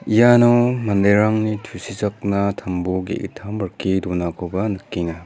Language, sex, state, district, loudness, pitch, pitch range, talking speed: Garo, male, Meghalaya, West Garo Hills, -19 LUFS, 100 Hz, 90-110 Hz, 90 wpm